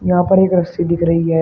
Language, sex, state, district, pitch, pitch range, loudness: Hindi, male, Uttar Pradesh, Shamli, 175 Hz, 165-180 Hz, -15 LUFS